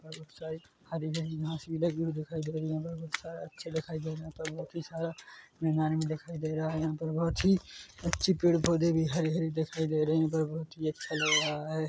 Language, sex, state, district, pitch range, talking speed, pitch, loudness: Hindi, male, Chhattisgarh, Bilaspur, 155-165 Hz, 245 wpm, 160 Hz, -32 LUFS